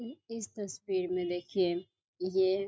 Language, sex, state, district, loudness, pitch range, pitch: Hindi, female, Bihar, East Champaran, -34 LUFS, 180-205 Hz, 190 Hz